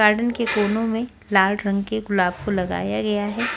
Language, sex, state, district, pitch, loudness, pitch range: Hindi, female, Maharashtra, Washim, 210 Hz, -22 LUFS, 200-225 Hz